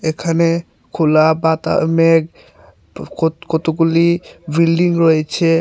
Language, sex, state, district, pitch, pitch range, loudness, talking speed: Bengali, male, Tripura, Unakoti, 165 Hz, 160-165 Hz, -15 LUFS, 85 wpm